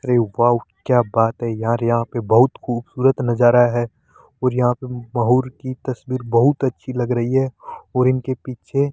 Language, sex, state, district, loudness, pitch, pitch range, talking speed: Hindi, male, Rajasthan, Jaipur, -19 LUFS, 125 Hz, 120-130 Hz, 175 wpm